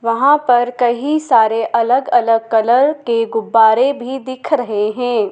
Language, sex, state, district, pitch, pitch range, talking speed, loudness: Hindi, female, Madhya Pradesh, Dhar, 240 Hz, 225-260 Hz, 145 wpm, -14 LUFS